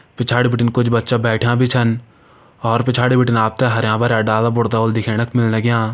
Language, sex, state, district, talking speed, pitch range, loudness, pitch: Hindi, male, Uttarakhand, Uttarkashi, 200 wpm, 115-125 Hz, -16 LUFS, 120 Hz